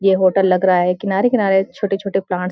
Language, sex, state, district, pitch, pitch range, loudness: Hindi, female, Uttarakhand, Uttarkashi, 195 Hz, 185-195 Hz, -16 LUFS